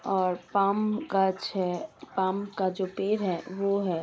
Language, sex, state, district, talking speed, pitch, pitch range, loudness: Hindi, female, Uttar Pradesh, Ghazipur, 180 wpm, 190 Hz, 185-200 Hz, -29 LUFS